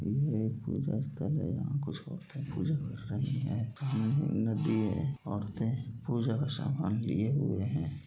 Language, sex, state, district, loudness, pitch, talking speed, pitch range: Bhojpuri, male, Uttar Pradesh, Gorakhpur, -33 LUFS, 135 Hz, 135 wpm, 110-145 Hz